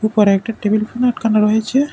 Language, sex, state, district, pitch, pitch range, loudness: Bengali, male, Tripura, West Tripura, 220 Hz, 215-240 Hz, -16 LUFS